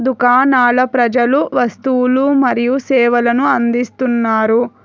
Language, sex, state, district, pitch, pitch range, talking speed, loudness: Telugu, female, Telangana, Hyderabad, 245 Hz, 240-260 Hz, 75 wpm, -13 LUFS